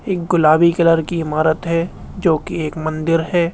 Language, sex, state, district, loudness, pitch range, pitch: Hindi, male, Rajasthan, Jaipur, -17 LUFS, 155-170 Hz, 165 Hz